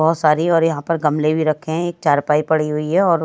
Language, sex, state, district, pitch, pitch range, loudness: Hindi, female, Haryana, Jhajjar, 155 Hz, 150-165 Hz, -17 LUFS